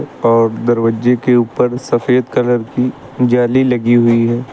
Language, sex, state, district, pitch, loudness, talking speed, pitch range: Hindi, male, Uttar Pradesh, Lucknow, 120 Hz, -14 LUFS, 145 wpm, 115-125 Hz